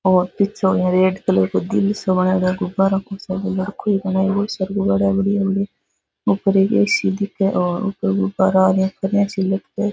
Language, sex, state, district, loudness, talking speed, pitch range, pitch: Rajasthani, female, Rajasthan, Nagaur, -19 LUFS, 120 wpm, 185-195 Hz, 190 Hz